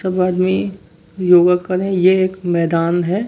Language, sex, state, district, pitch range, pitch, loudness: Hindi, male, Bihar, Kaimur, 170-185 Hz, 180 Hz, -16 LUFS